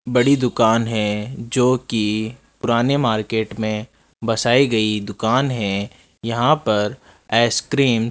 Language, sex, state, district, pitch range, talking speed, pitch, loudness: Hindi, male, Rajasthan, Jaipur, 105-125 Hz, 110 wpm, 115 Hz, -19 LUFS